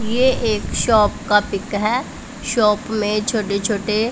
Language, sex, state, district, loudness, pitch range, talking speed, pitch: Hindi, female, Punjab, Pathankot, -19 LUFS, 210-225 Hz, 145 wpm, 215 Hz